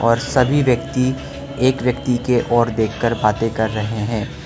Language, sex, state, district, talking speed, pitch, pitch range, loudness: Hindi, male, Arunachal Pradesh, Lower Dibang Valley, 160 wpm, 120 Hz, 110-130 Hz, -18 LUFS